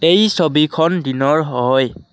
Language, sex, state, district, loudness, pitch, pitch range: Assamese, male, Assam, Kamrup Metropolitan, -15 LUFS, 155 Hz, 130-165 Hz